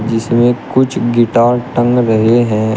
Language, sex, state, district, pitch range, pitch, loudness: Hindi, male, Uttar Pradesh, Shamli, 115-120 Hz, 120 Hz, -12 LUFS